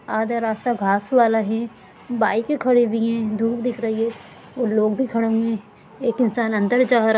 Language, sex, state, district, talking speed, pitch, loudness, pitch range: Hindi, female, Bihar, Jahanabad, 190 wpm, 230 Hz, -21 LUFS, 220-240 Hz